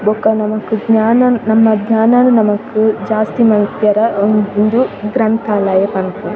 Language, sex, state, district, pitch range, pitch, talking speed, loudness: Tulu, female, Karnataka, Dakshina Kannada, 210-225 Hz, 215 Hz, 105 wpm, -13 LUFS